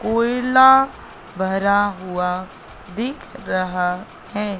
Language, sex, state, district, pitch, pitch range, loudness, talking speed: Hindi, female, Madhya Pradesh, Katni, 200 Hz, 185-235 Hz, -19 LUFS, 80 wpm